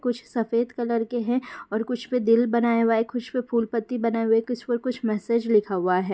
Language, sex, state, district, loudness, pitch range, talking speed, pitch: Hindi, female, Bihar, Jahanabad, -24 LUFS, 225-245 Hz, 255 wpm, 235 Hz